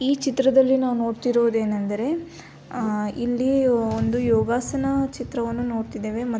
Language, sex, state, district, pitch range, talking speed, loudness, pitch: Kannada, female, Karnataka, Belgaum, 225-265 Hz, 110 wpm, -23 LUFS, 240 Hz